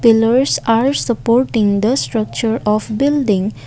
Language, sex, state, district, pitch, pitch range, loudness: English, female, Assam, Kamrup Metropolitan, 225 Hz, 215-245 Hz, -15 LUFS